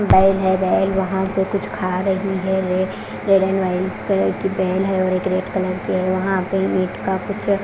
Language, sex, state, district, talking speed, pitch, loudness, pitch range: Hindi, female, Punjab, Fazilka, 235 wpm, 190 Hz, -19 LUFS, 185-195 Hz